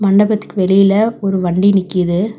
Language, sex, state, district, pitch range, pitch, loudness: Tamil, female, Tamil Nadu, Chennai, 185-210 Hz, 195 Hz, -14 LUFS